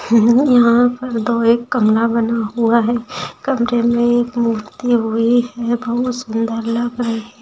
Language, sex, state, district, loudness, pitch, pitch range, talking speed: Hindi, female, Bihar, Araria, -16 LUFS, 235 Hz, 230-240 Hz, 160 wpm